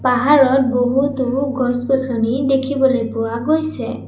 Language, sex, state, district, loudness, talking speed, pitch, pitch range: Assamese, female, Assam, Sonitpur, -17 LUFS, 90 wpm, 260 Hz, 245-275 Hz